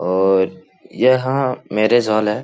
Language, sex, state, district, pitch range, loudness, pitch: Hindi, male, Bihar, Jahanabad, 95-125 Hz, -17 LUFS, 105 Hz